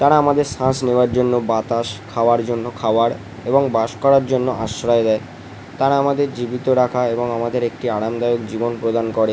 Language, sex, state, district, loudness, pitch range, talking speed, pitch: Bengali, male, West Bengal, Jalpaiguri, -18 LUFS, 115-130 Hz, 165 wpm, 120 Hz